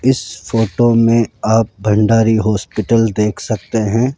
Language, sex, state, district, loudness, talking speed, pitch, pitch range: Hindi, male, Rajasthan, Jaipur, -15 LUFS, 130 wpm, 110 Hz, 110-115 Hz